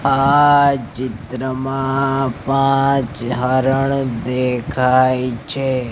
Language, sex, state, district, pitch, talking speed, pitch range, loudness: Gujarati, male, Gujarat, Gandhinagar, 130 Hz, 60 wpm, 125-135 Hz, -17 LUFS